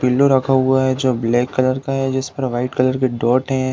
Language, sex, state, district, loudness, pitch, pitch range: Hindi, male, Uttar Pradesh, Deoria, -17 LUFS, 130 Hz, 125-130 Hz